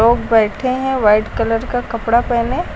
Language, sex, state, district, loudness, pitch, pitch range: Hindi, female, Uttar Pradesh, Lucknow, -16 LUFS, 235 Hz, 225-250 Hz